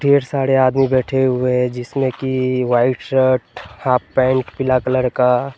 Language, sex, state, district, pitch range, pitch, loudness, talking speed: Hindi, male, Bihar, Katihar, 125-130 Hz, 130 Hz, -17 LUFS, 160 wpm